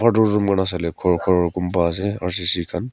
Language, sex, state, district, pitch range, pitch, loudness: Nagamese, male, Nagaland, Kohima, 85-100 Hz, 90 Hz, -20 LUFS